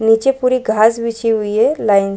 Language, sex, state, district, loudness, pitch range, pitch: Hindi, female, Chhattisgarh, Bilaspur, -15 LUFS, 215-235 Hz, 225 Hz